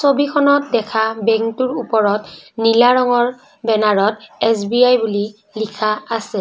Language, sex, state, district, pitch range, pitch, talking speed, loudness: Assamese, female, Assam, Kamrup Metropolitan, 215-250 Hz, 225 Hz, 120 wpm, -16 LUFS